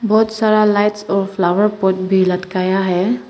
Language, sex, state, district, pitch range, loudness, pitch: Hindi, female, Arunachal Pradesh, Papum Pare, 185-215 Hz, -16 LUFS, 195 Hz